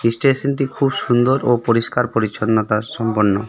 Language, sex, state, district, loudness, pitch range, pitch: Bengali, male, West Bengal, Darjeeling, -17 LUFS, 110-135 Hz, 115 Hz